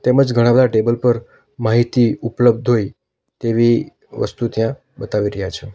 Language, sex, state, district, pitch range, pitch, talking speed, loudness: Gujarati, male, Gujarat, Valsad, 110-120 Hz, 120 Hz, 145 wpm, -17 LUFS